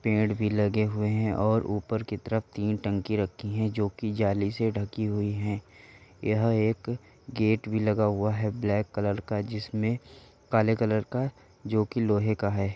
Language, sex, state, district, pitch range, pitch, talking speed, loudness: Hindi, male, Uttar Pradesh, Muzaffarnagar, 105-110 Hz, 105 Hz, 180 wpm, -28 LUFS